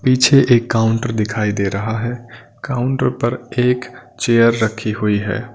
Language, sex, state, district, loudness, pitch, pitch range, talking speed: Hindi, male, Punjab, Kapurthala, -17 LUFS, 120 Hz, 110-125 Hz, 150 wpm